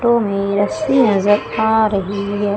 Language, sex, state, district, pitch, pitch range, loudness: Hindi, female, Madhya Pradesh, Umaria, 205 Hz, 200-220 Hz, -16 LUFS